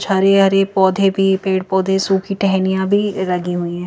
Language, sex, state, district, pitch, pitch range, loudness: Hindi, female, Madhya Pradesh, Bhopal, 190 Hz, 190-195 Hz, -16 LUFS